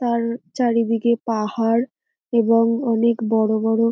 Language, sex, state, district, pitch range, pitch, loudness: Bengali, female, West Bengal, North 24 Parganas, 225-235 Hz, 230 Hz, -20 LUFS